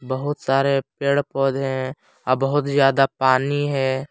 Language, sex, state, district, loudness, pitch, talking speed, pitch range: Hindi, male, Jharkhand, Palamu, -20 LUFS, 135 Hz, 145 wpm, 130-140 Hz